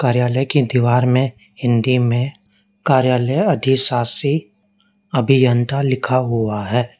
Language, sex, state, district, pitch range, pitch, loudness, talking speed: Hindi, male, Uttar Pradesh, Lalitpur, 120-135 Hz, 125 Hz, -17 LUFS, 105 wpm